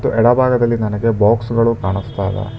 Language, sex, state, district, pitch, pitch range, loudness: Kannada, male, Karnataka, Bangalore, 115 Hz, 105-115 Hz, -16 LUFS